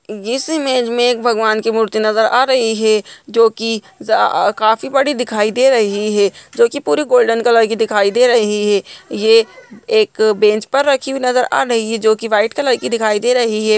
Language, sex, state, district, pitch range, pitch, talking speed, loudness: Hindi, male, Bihar, Gaya, 215-250 Hz, 225 Hz, 185 wpm, -14 LUFS